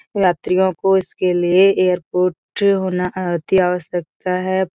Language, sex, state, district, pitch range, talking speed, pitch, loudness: Hindi, female, Bihar, Jahanabad, 180-190 Hz, 115 wpm, 185 Hz, -17 LUFS